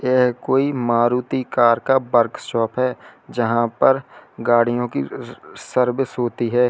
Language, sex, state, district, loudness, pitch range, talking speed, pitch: Hindi, male, Uttar Pradesh, Lalitpur, -19 LUFS, 120-130 Hz, 135 wpm, 120 Hz